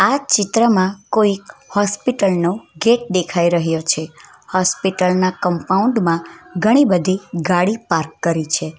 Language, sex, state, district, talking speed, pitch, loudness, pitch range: Gujarati, female, Gujarat, Valsad, 130 wpm, 185 Hz, -17 LUFS, 170-205 Hz